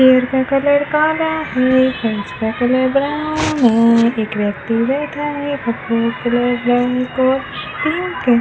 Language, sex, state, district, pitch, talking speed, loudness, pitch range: Hindi, female, Rajasthan, Bikaner, 255 Hz, 120 wpm, -16 LUFS, 235-285 Hz